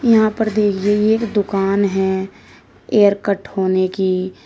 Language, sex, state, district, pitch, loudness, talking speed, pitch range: Hindi, female, Uttar Pradesh, Shamli, 200 Hz, -17 LUFS, 150 wpm, 190-215 Hz